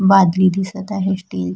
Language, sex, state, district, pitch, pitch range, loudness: Marathi, female, Maharashtra, Sindhudurg, 190 Hz, 185-195 Hz, -17 LUFS